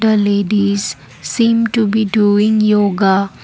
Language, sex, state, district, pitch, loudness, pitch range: English, female, Assam, Kamrup Metropolitan, 205 Hz, -14 LUFS, 200-215 Hz